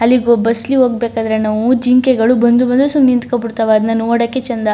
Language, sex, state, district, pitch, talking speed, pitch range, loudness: Kannada, female, Karnataka, Chamarajanagar, 235 Hz, 190 wpm, 225-250 Hz, -13 LUFS